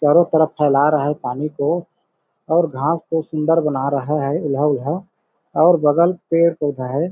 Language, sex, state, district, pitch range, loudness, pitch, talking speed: Hindi, male, Chhattisgarh, Balrampur, 145-165 Hz, -18 LUFS, 155 Hz, 175 wpm